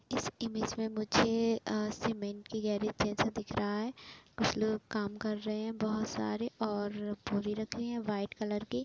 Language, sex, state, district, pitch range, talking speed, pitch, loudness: Hindi, female, Uttar Pradesh, Etah, 210-220 Hz, 175 wpm, 215 Hz, -35 LUFS